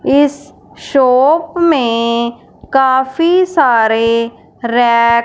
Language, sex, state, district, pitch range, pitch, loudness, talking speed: Hindi, female, Punjab, Fazilka, 235-290 Hz, 255 Hz, -12 LUFS, 70 wpm